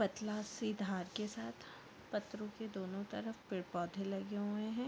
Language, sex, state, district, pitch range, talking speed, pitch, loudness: Hindi, female, Chhattisgarh, Korba, 190-215 Hz, 185 wpm, 205 Hz, -43 LUFS